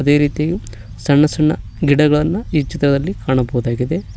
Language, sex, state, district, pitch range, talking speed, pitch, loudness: Kannada, male, Karnataka, Koppal, 120-155 Hz, 115 wpm, 145 Hz, -17 LUFS